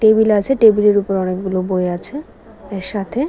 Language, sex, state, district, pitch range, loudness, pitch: Bengali, female, Tripura, West Tripura, 190-220 Hz, -16 LUFS, 205 Hz